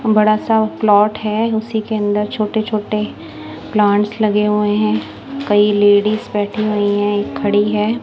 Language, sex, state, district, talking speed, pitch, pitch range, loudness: Hindi, female, Punjab, Kapurthala, 150 wpm, 210 Hz, 205-215 Hz, -16 LUFS